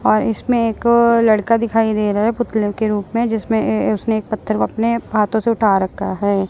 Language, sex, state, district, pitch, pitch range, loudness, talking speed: Hindi, male, Punjab, Kapurthala, 220 Hz, 210-230 Hz, -17 LUFS, 220 wpm